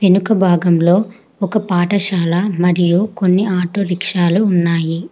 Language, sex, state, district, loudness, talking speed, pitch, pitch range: Telugu, female, Telangana, Hyderabad, -15 LUFS, 105 wpm, 180 Hz, 175-200 Hz